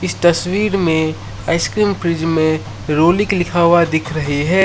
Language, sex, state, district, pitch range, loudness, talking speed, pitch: Hindi, male, Assam, Sonitpur, 155-180 Hz, -16 LUFS, 155 wpm, 170 Hz